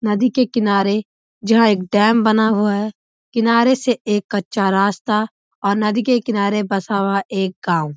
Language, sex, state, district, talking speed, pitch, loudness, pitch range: Hindi, female, Uttarakhand, Uttarkashi, 165 wpm, 210 Hz, -17 LUFS, 200-230 Hz